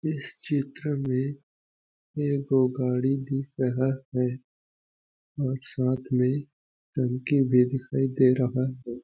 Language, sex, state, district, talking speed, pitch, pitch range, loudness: Hindi, male, Chhattisgarh, Balrampur, 115 wpm, 130 Hz, 125-140 Hz, -27 LUFS